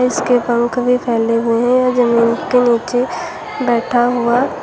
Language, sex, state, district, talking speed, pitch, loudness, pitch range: Hindi, female, Uttar Pradesh, Shamli, 155 wpm, 245 Hz, -15 LUFS, 235-250 Hz